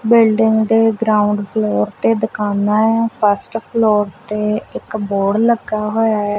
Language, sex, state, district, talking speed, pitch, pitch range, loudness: Punjabi, female, Punjab, Kapurthala, 140 wpm, 215 Hz, 205-225 Hz, -16 LUFS